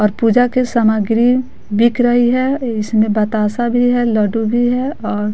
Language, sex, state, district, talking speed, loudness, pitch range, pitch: Hindi, female, Bihar, West Champaran, 180 wpm, -15 LUFS, 215-245 Hz, 235 Hz